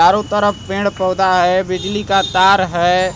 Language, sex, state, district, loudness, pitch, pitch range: Hindi, male, Bihar, Kaimur, -15 LUFS, 190 Hz, 185-200 Hz